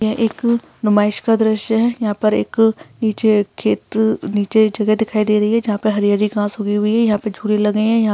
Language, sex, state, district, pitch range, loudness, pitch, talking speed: Hindi, female, Uttar Pradesh, Etah, 210-225 Hz, -17 LUFS, 215 Hz, 245 wpm